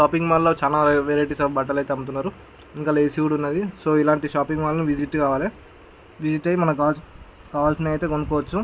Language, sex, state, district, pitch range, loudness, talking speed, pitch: Telugu, male, Andhra Pradesh, Chittoor, 145-155 Hz, -22 LUFS, 180 wpm, 150 Hz